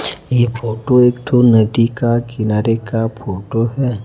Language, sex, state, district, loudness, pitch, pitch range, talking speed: Hindi, male, Chhattisgarh, Raipur, -15 LUFS, 115 Hz, 110-125 Hz, 150 wpm